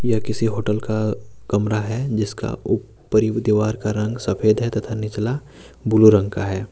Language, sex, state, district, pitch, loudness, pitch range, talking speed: Hindi, male, Jharkhand, Deoghar, 110 Hz, -21 LUFS, 105-110 Hz, 170 wpm